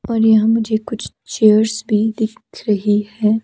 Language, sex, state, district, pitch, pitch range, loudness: Hindi, female, Himachal Pradesh, Shimla, 220 Hz, 215-225 Hz, -16 LUFS